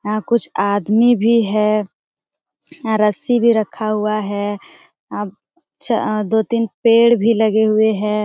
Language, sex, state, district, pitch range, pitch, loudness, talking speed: Hindi, female, Jharkhand, Jamtara, 210-230 Hz, 215 Hz, -16 LUFS, 130 wpm